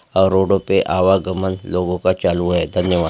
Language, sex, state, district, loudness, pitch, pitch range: Hindi, male, Chhattisgarh, Bastar, -17 LUFS, 95 Hz, 90-95 Hz